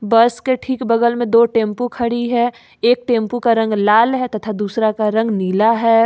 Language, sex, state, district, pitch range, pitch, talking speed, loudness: Hindi, female, Jharkhand, Ranchi, 220-240 Hz, 230 Hz, 210 wpm, -16 LUFS